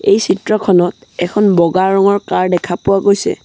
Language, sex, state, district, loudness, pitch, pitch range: Assamese, male, Assam, Sonitpur, -13 LUFS, 195 Hz, 175-200 Hz